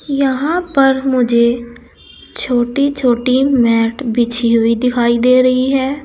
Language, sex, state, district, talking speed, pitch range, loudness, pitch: Hindi, female, Uttar Pradesh, Saharanpur, 120 wpm, 235-270 Hz, -14 LUFS, 250 Hz